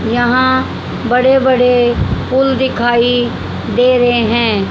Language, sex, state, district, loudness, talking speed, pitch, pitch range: Hindi, female, Haryana, Charkhi Dadri, -13 LUFS, 100 wpm, 245 Hz, 240-255 Hz